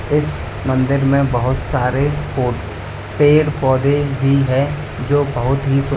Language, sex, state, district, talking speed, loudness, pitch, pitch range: Hindi, male, Uttar Pradesh, Lalitpur, 140 wpm, -17 LUFS, 135 Hz, 125-145 Hz